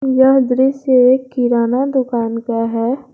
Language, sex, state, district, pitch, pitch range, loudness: Hindi, female, Jharkhand, Garhwa, 255 Hz, 235-265 Hz, -15 LUFS